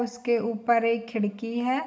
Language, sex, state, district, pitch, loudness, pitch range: Hindi, female, Bihar, Saharsa, 235 Hz, -26 LUFS, 230-240 Hz